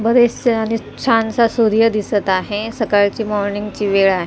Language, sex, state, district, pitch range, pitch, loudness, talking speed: Marathi, female, Maharashtra, Mumbai Suburban, 205-230 Hz, 215 Hz, -16 LUFS, 140 wpm